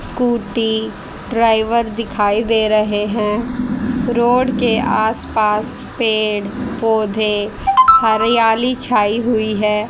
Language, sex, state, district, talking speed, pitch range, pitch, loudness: Hindi, female, Haryana, Rohtak, 90 wpm, 215-240 Hz, 225 Hz, -16 LUFS